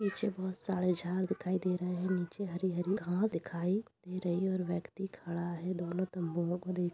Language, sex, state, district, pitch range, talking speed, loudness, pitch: Hindi, female, Uttar Pradesh, Budaun, 175-185 Hz, 205 wpm, -36 LUFS, 180 Hz